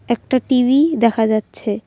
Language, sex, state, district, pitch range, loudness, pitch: Bengali, female, Assam, Kamrup Metropolitan, 220-260 Hz, -16 LUFS, 235 Hz